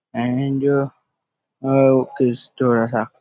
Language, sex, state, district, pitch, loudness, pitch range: Marathi, male, Maharashtra, Dhule, 130 Hz, -19 LUFS, 120-135 Hz